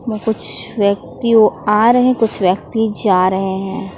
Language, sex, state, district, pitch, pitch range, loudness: Hindi, female, Jharkhand, Palamu, 210 Hz, 195-225 Hz, -15 LUFS